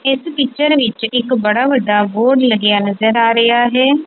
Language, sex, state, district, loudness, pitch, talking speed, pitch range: Punjabi, female, Punjab, Kapurthala, -13 LUFS, 245 Hz, 175 wpm, 220-270 Hz